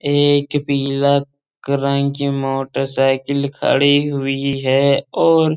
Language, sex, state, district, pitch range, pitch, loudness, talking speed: Hindi, male, Uttar Pradesh, Jalaun, 135-145 Hz, 140 Hz, -17 LUFS, 95 wpm